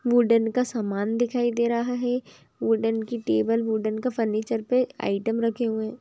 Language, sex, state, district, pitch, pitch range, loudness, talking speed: Hindi, female, Andhra Pradesh, Chittoor, 230 Hz, 220-240 Hz, -25 LUFS, 180 wpm